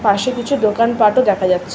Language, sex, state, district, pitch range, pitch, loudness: Bengali, female, West Bengal, Malda, 205-245 Hz, 215 Hz, -15 LUFS